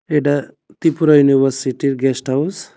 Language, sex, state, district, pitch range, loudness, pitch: Bengali, male, Tripura, West Tripura, 135-155 Hz, -16 LUFS, 140 Hz